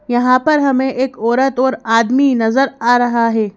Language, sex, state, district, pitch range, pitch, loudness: Hindi, female, Madhya Pradesh, Bhopal, 230-265 Hz, 255 Hz, -14 LUFS